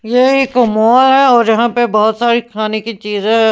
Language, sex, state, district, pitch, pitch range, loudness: Hindi, female, Punjab, Pathankot, 230 Hz, 220-245 Hz, -12 LUFS